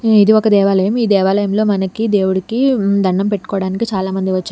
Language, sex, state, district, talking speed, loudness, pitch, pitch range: Telugu, female, Telangana, Hyderabad, 160 wpm, -15 LUFS, 200 Hz, 190-215 Hz